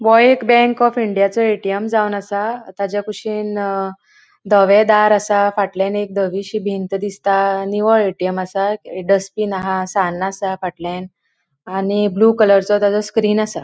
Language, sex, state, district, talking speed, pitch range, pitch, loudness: Konkani, female, Goa, North and South Goa, 135 wpm, 195-215 Hz, 205 Hz, -17 LUFS